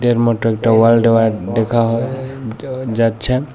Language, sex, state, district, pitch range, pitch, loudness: Bengali, male, Tripura, West Tripura, 115-125 Hz, 115 Hz, -15 LUFS